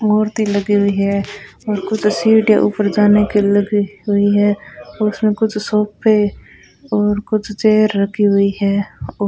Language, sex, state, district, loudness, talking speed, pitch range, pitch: Hindi, female, Rajasthan, Bikaner, -15 LUFS, 160 wpm, 200-215 Hz, 205 Hz